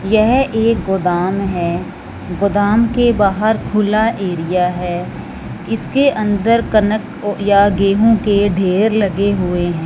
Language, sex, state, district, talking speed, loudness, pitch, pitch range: Hindi, male, Punjab, Fazilka, 120 wpm, -15 LUFS, 205 Hz, 185-220 Hz